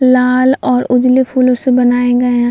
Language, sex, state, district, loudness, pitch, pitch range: Hindi, female, Bihar, Vaishali, -11 LUFS, 250 Hz, 245-255 Hz